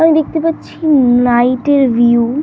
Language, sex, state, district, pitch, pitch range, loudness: Bengali, female, West Bengal, North 24 Parganas, 270 Hz, 245-315 Hz, -12 LUFS